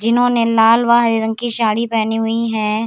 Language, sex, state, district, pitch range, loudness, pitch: Hindi, female, Bihar, Samastipur, 225-235 Hz, -15 LUFS, 225 Hz